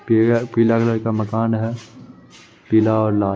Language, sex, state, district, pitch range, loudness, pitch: Hindi, male, Bihar, Araria, 110-115 Hz, -18 LUFS, 115 Hz